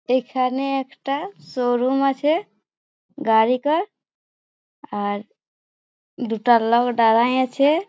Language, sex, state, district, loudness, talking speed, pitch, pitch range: Bengali, female, West Bengal, Paschim Medinipur, -20 LUFS, 75 wpm, 255 Hz, 235-285 Hz